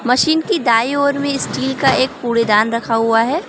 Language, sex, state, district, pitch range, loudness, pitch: Hindi, female, Arunachal Pradesh, Lower Dibang Valley, 230-285 Hz, -15 LUFS, 260 Hz